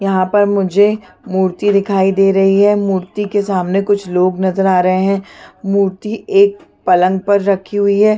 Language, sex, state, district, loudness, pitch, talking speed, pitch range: Hindi, female, Chhattisgarh, Bastar, -14 LUFS, 195 Hz, 185 wpm, 190-205 Hz